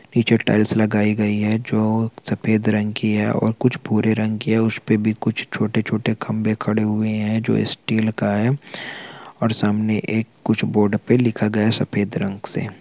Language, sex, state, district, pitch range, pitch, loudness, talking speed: Hindi, male, Chhattisgarh, Balrampur, 105-115 Hz, 110 Hz, -20 LUFS, 190 wpm